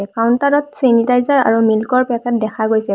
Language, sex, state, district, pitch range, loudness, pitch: Assamese, female, Assam, Hailakandi, 220-255 Hz, -15 LUFS, 235 Hz